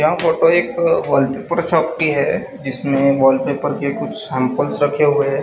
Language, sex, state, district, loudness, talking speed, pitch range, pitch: Hindi, male, Maharashtra, Gondia, -17 LUFS, 165 wpm, 135-165 Hz, 145 Hz